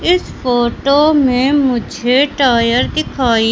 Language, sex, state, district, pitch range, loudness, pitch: Hindi, male, Madhya Pradesh, Katni, 240-285 Hz, -13 LUFS, 255 Hz